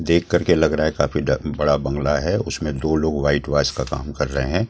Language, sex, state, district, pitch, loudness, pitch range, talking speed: Hindi, male, Delhi, New Delhi, 75 Hz, -20 LUFS, 70-80 Hz, 255 wpm